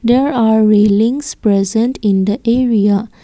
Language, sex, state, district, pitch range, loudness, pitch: English, female, Assam, Kamrup Metropolitan, 205-235 Hz, -13 LUFS, 220 Hz